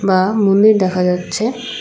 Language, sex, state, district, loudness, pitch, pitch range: Bengali, female, West Bengal, Alipurduar, -14 LUFS, 195 Hz, 185-215 Hz